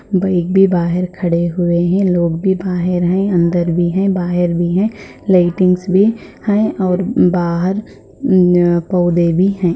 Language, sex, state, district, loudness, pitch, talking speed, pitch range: Hindi, female, Bihar, Purnia, -15 LUFS, 180 Hz, 145 wpm, 175-190 Hz